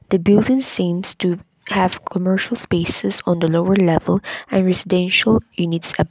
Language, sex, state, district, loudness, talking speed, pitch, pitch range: English, female, Nagaland, Kohima, -17 LUFS, 145 wpm, 185 Hz, 175-195 Hz